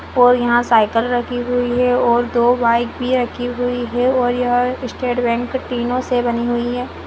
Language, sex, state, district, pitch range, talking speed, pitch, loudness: Hindi, female, Goa, North and South Goa, 240-250 Hz, 185 wpm, 245 Hz, -17 LUFS